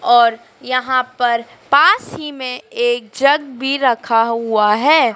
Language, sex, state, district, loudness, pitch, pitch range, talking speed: Hindi, female, Madhya Pradesh, Dhar, -16 LUFS, 245 Hz, 230-260 Hz, 140 wpm